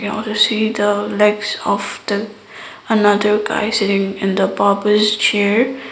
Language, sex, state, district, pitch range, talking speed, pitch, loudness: English, female, Sikkim, Gangtok, 205-215 Hz, 130 wpm, 210 Hz, -16 LUFS